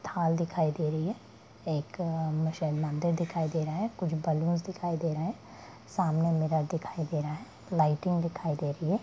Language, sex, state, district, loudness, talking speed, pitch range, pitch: Hindi, female, Bihar, Darbhanga, -31 LUFS, 200 wpm, 155-170 Hz, 160 Hz